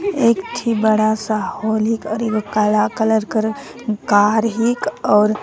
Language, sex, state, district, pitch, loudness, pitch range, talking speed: Sadri, female, Chhattisgarh, Jashpur, 220 Hz, -18 LUFS, 215-225 Hz, 155 wpm